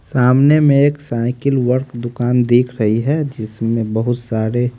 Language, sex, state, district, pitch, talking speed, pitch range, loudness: Hindi, male, Haryana, Rohtak, 125 Hz, 150 wpm, 115-135 Hz, -16 LUFS